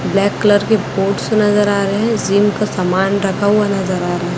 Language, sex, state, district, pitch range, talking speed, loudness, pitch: Hindi, male, Chhattisgarh, Raipur, 190-205 Hz, 230 wpm, -15 LUFS, 200 Hz